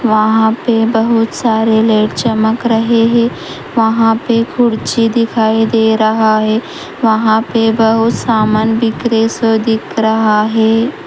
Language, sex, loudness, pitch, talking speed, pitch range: Hindi, female, -12 LUFS, 225 Hz, 135 wpm, 220-230 Hz